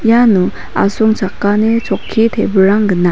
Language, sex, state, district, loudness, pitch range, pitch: Garo, female, Meghalaya, West Garo Hills, -13 LUFS, 195-225 Hz, 210 Hz